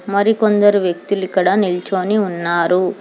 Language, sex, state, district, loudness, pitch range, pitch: Telugu, female, Telangana, Hyderabad, -16 LUFS, 180-205 Hz, 190 Hz